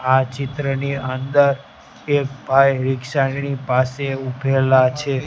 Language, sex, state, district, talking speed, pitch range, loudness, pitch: Gujarati, male, Gujarat, Gandhinagar, 115 wpm, 130-140 Hz, -19 LUFS, 135 Hz